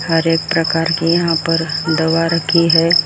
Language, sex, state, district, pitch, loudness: Hindi, male, Maharashtra, Gondia, 165 Hz, -15 LUFS